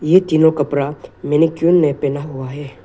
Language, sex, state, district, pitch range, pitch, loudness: Hindi, male, Arunachal Pradesh, Lower Dibang Valley, 140-160 Hz, 150 Hz, -16 LUFS